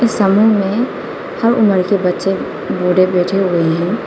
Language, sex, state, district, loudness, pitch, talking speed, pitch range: Hindi, female, Arunachal Pradesh, Lower Dibang Valley, -14 LUFS, 195 Hz, 145 wpm, 180-215 Hz